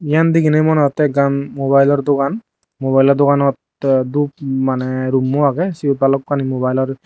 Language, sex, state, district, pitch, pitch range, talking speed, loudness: Chakma, male, Tripura, Dhalai, 140 Hz, 135-145 Hz, 145 wpm, -16 LUFS